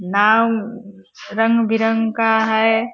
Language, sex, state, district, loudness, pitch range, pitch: Hindi, female, Bihar, Purnia, -16 LUFS, 220-225 Hz, 225 Hz